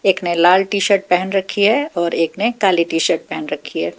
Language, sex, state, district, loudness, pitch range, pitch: Hindi, female, Haryana, Jhajjar, -16 LUFS, 170-200 Hz, 185 Hz